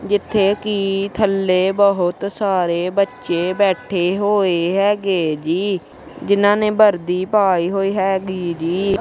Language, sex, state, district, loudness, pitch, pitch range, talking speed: Punjabi, male, Punjab, Kapurthala, -18 LUFS, 195 Hz, 180-200 Hz, 115 wpm